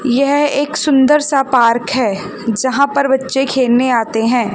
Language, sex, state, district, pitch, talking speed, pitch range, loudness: Hindi, female, Chandigarh, Chandigarh, 260 Hz, 160 wpm, 240-280 Hz, -14 LUFS